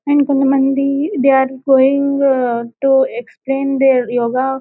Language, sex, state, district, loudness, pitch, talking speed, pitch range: Telugu, female, Telangana, Karimnagar, -14 LUFS, 270 Hz, 130 wpm, 265-275 Hz